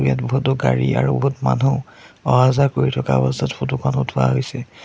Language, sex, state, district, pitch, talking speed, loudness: Assamese, male, Assam, Sonitpur, 115 Hz, 185 wpm, -19 LUFS